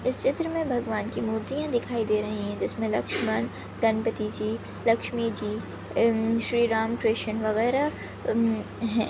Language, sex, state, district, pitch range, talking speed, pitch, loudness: Hindi, female, Maharashtra, Nagpur, 220-235 Hz, 130 wpm, 225 Hz, -27 LUFS